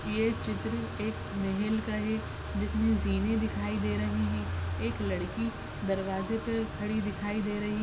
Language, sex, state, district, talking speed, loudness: Hindi, female, Maharashtra, Chandrapur, 160 wpm, -32 LUFS